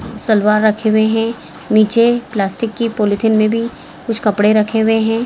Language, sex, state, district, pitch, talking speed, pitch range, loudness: Hindi, female, Bihar, Samastipur, 220 Hz, 170 wpm, 215-230 Hz, -14 LUFS